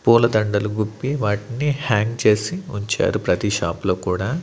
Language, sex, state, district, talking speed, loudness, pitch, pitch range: Telugu, male, Andhra Pradesh, Annamaya, 135 wpm, -21 LUFS, 105 Hz, 105-120 Hz